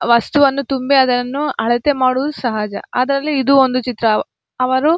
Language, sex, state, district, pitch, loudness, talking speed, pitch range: Kannada, female, Karnataka, Gulbarga, 260 Hz, -16 LUFS, 130 wpm, 245-275 Hz